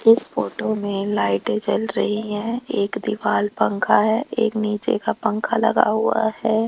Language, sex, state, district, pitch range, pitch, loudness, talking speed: Hindi, female, Rajasthan, Jaipur, 200-225 Hz, 215 Hz, -21 LUFS, 160 wpm